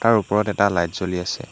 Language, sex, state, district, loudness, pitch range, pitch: Assamese, male, Assam, Hailakandi, -21 LUFS, 90-110 Hz, 100 Hz